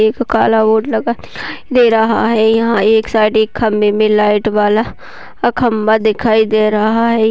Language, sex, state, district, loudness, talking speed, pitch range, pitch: Hindi, female, Uttar Pradesh, Gorakhpur, -13 LUFS, 165 wpm, 215-225 Hz, 220 Hz